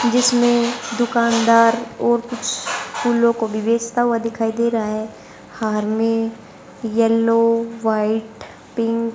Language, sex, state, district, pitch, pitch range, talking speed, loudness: Hindi, female, Haryana, Charkhi Dadri, 230 Hz, 225-235 Hz, 125 wpm, -19 LUFS